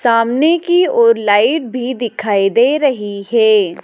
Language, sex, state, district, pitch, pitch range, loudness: Hindi, female, Madhya Pradesh, Dhar, 235 Hz, 210-290 Hz, -13 LUFS